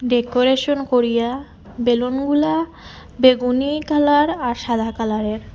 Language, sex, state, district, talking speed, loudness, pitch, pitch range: Bengali, female, Assam, Hailakandi, 85 wpm, -18 LUFS, 250 Hz, 235-290 Hz